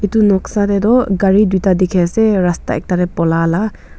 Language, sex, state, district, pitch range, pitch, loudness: Nagamese, female, Nagaland, Kohima, 180-210 Hz, 195 Hz, -14 LUFS